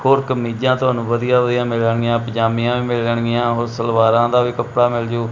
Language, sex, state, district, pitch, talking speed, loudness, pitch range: Punjabi, male, Punjab, Kapurthala, 120 Hz, 180 wpm, -17 LUFS, 115-125 Hz